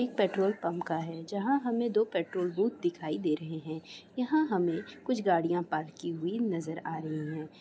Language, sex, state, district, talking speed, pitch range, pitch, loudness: Hindi, female, Bihar, Darbhanga, 195 wpm, 160-205 Hz, 175 Hz, -32 LUFS